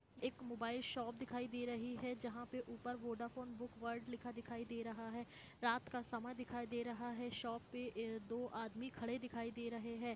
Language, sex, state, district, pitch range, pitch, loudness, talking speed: Hindi, female, Jharkhand, Sahebganj, 235-245 Hz, 240 Hz, -46 LUFS, 195 wpm